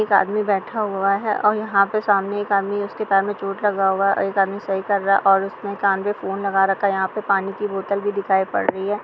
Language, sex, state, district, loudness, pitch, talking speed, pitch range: Hindi, female, Bihar, Kishanganj, -20 LUFS, 200 Hz, 285 wpm, 195-205 Hz